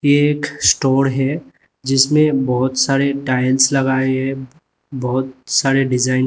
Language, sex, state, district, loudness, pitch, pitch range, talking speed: Hindi, male, Uttar Pradesh, Lalitpur, -16 LUFS, 135 Hz, 130-140 Hz, 135 wpm